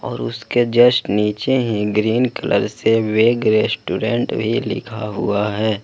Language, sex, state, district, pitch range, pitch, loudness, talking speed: Hindi, male, Jharkhand, Ranchi, 105-120 Hz, 110 Hz, -18 LUFS, 145 wpm